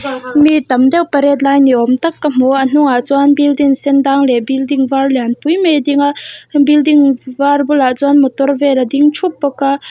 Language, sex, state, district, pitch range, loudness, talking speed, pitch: Mizo, female, Mizoram, Aizawl, 270-290 Hz, -11 LUFS, 225 wpm, 280 Hz